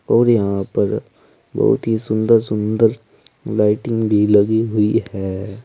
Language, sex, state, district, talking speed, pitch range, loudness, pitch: Hindi, male, Uttar Pradesh, Saharanpur, 125 wpm, 105-115 Hz, -17 LUFS, 110 Hz